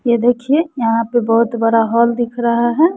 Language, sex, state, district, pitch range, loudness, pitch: Hindi, female, Bihar, West Champaran, 230-245 Hz, -15 LUFS, 235 Hz